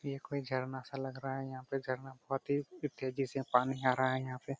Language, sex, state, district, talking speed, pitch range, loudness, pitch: Hindi, male, Jharkhand, Jamtara, 235 wpm, 130-135 Hz, -37 LUFS, 135 Hz